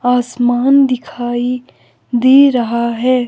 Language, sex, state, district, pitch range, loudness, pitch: Hindi, female, Himachal Pradesh, Shimla, 240-255 Hz, -13 LUFS, 245 Hz